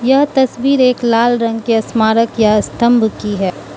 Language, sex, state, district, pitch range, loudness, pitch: Hindi, female, Manipur, Imphal West, 220-250 Hz, -13 LUFS, 230 Hz